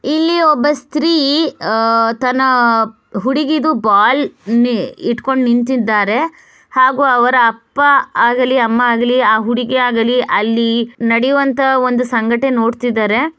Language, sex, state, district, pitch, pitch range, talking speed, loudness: Kannada, female, Karnataka, Bellary, 245 Hz, 230-275 Hz, 105 wpm, -13 LUFS